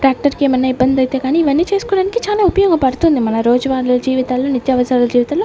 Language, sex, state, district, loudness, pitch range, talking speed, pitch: Telugu, female, Andhra Pradesh, Sri Satya Sai, -14 LUFS, 255-330 Hz, 210 wpm, 265 Hz